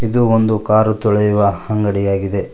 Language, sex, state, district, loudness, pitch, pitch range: Kannada, male, Karnataka, Koppal, -15 LUFS, 105 Hz, 100-110 Hz